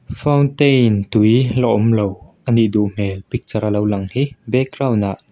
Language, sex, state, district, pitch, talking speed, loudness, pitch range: Mizo, male, Mizoram, Aizawl, 110 Hz, 160 wpm, -17 LUFS, 105-130 Hz